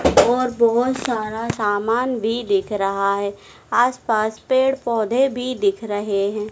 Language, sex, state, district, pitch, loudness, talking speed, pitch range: Hindi, female, Madhya Pradesh, Dhar, 225 Hz, -20 LUFS, 140 wpm, 205-250 Hz